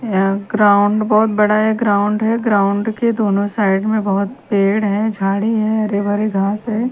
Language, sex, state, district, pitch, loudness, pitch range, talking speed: Hindi, female, Haryana, Charkhi Dadri, 210 Hz, -16 LUFS, 200-220 Hz, 180 wpm